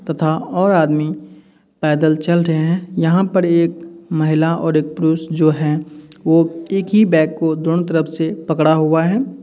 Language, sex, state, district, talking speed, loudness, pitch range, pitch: Hindi, male, Uttar Pradesh, Hamirpur, 170 wpm, -16 LUFS, 155-170 Hz, 160 Hz